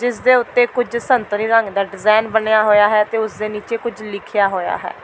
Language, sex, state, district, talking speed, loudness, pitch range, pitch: Punjabi, female, Delhi, New Delhi, 225 wpm, -16 LUFS, 205-235 Hz, 215 Hz